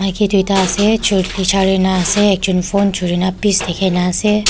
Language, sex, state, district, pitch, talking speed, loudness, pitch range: Nagamese, female, Nagaland, Kohima, 195 Hz, 160 wpm, -14 LUFS, 185-205 Hz